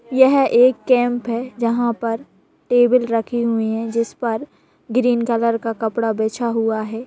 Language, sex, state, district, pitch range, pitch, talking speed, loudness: Hindi, female, Bihar, Kishanganj, 225-245 Hz, 235 Hz, 160 wpm, -18 LUFS